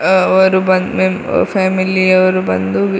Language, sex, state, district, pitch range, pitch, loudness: Kannada, female, Karnataka, Dakshina Kannada, 185-190 Hz, 185 Hz, -13 LUFS